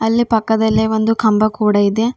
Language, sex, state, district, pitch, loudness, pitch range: Kannada, female, Karnataka, Bidar, 220 Hz, -15 LUFS, 215-225 Hz